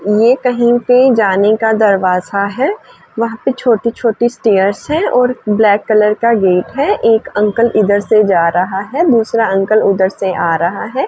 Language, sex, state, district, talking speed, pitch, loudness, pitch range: Hindi, female, Uttar Pradesh, Varanasi, 170 wpm, 220 Hz, -12 LUFS, 200-240 Hz